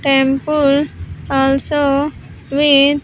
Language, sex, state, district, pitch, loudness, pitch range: English, female, Andhra Pradesh, Sri Satya Sai, 280 Hz, -15 LUFS, 275-290 Hz